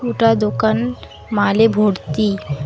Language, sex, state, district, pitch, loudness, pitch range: Bengali, female, West Bengal, Alipurduar, 205 Hz, -17 LUFS, 140-220 Hz